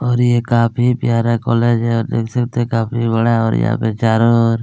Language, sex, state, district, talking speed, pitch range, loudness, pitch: Hindi, male, Chhattisgarh, Kabirdham, 205 wpm, 115-120 Hz, -16 LUFS, 115 Hz